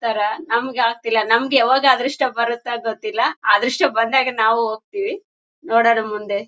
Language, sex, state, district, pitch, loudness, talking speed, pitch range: Kannada, female, Karnataka, Bellary, 230 Hz, -18 LUFS, 140 wpm, 220-255 Hz